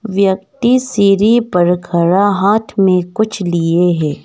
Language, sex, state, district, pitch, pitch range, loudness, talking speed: Hindi, female, Arunachal Pradesh, Longding, 195 Hz, 175-215 Hz, -13 LUFS, 125 wpm